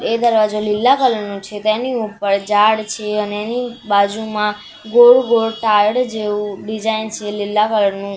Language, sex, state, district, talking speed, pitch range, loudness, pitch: Gujarati, female, Gujarat, Gandhinagar, 160 wpm, 210-225 Hz, -16 LUFS, 215 Hz